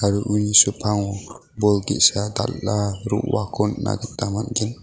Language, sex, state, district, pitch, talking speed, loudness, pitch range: Garo, male, Meghalaya, West Garo Hills, 105 Hz, 125 wpm, -20 LUFS, 100-110 Hz